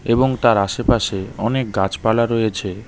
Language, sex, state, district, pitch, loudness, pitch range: Bengali, male, West Bengal, Darjeeling, 115 Hz, -18 LUFS, 100-120 Hz